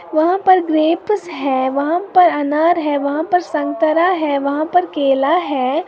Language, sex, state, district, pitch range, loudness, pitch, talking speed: Hindi, female, Uttar Pradesh, Lalitpur, 290-350 Hz, -16 LUFS, 315 Hz, 165 wpm